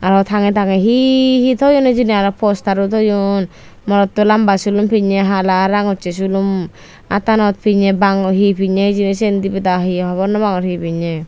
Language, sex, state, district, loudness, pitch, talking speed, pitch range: Chakma, female, Tripura, Dhalai, -14 LUFS, 200 Hz, 155 wpm, 190-210 Hz